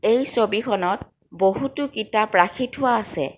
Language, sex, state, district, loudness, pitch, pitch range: Assamese, female, Assam, Kamrup Metropolitan, -21 LUFS, 220 Hz, 200-255 Hz